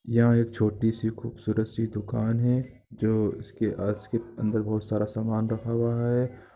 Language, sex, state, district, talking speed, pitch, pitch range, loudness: Hindi, male, Bihar, East Champaran, 155 wpm, 110 Hz, 110-115 Hz, -27 LUFS